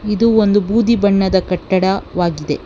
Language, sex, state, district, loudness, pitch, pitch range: Kannada, female, Karnataka, Bangalore, -15 LUFS, 195 Hz, 185-210 Hz